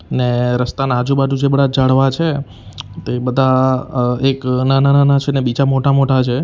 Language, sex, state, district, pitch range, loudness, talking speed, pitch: Gujarati, male, Gujarat, Valsad, 125-140 Hz, -15 LUFS, 160 wpm, 130 Hz